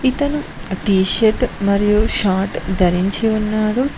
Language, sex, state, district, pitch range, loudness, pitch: Telugu, female, Telangana, Mahabubabad, 190-225 Hz, -16 LUFS, 210 Hz